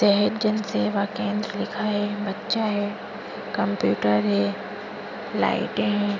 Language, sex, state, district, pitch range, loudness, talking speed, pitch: Hindi, female, Maharashtra, Nagpur, 170-210 Hz, -25 LUFS, 105 wpm, 205 Hz